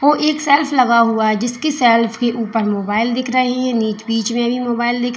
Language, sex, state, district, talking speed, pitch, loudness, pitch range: Hindi, female, Uttar Pradesh, Lalitpur, 210 wpm, 240 Hz, -16 LUFS, 230-255 Hz